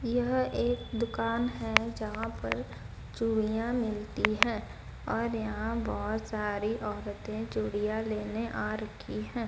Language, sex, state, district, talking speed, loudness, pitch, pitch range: Hindi, female, Odisha, Sambalpur, 120 wpm, -32 LUFS, 215 Hz, 205-230 Hz